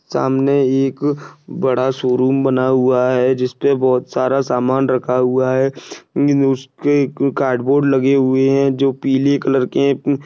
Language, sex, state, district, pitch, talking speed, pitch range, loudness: Hindi, male, Maharashtra, Nagpur, 135 Hz, 140 wpm, 130-140 Hz, -16 LUFS